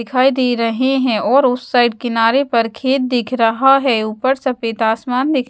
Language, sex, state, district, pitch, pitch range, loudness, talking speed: Hindi, female, Bihar, West Champaran, 250 Hz, 230-265 Hz, -15 LUFS, 185 wpm